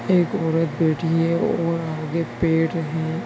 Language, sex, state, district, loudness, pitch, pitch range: Hindi, male, Bihar, Begusarai, -22 LUFS, 165 Hz, 160-170 Hz